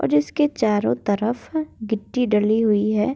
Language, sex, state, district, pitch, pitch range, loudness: Hindi, female, Bihar, Begusarai, 220 Hz, 210-250 Hz, -21 LUFS